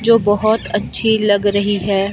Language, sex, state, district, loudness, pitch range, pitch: Hindi, female, Himachal Pradesh, Shimla, -15 LUFS, 205-220 Hz, 205 Hz